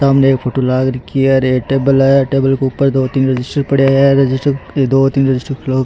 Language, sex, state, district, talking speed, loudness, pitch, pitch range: Rajasthani, male, Rajasthan, Churu, 185 wpm, -13 LUFS, 135 Hz, 130-135 Hz